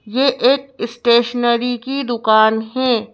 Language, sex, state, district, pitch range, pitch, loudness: Hindi, female, Madhya Pradesh, Bhopal, 230-260 Hz, 240 Hz, -16 LUFS